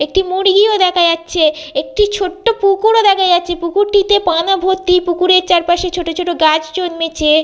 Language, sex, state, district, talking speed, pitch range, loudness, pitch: Bengali, female, West Bengal, Jhargram, 155 wpm, 335-390 Hz, -13 LUFS, 360 Hz